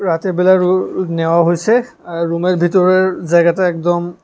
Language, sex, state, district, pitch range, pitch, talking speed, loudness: Bengali, male, Tripura, West Tripura, 170-185 Hz, 175 Hz, 125 wpm, -14 LUFS